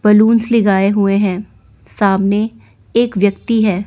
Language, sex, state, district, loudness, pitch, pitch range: Hindi, female, Chandigarh, Chandigarh, -14 LUFS, 205 Hz, 195-220 Hz